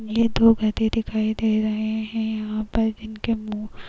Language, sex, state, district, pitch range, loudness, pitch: Hindi, female, Uttar Pradesh, Jyotiba Phule Nagar, 215-225 Hz, -23 LUFS, 220 Hz